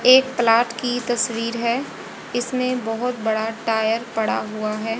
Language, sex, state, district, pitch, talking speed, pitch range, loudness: Hindi, female, Haryana, Charkhi Dadri, 235 Hz, 145 wpm, 225-245 Hz, -21 LUFS